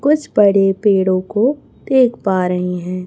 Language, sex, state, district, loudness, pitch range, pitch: Hindi, female, Chhattisgarh, Raipur, -15 LUFS, 185-245 Hz, 195 Hz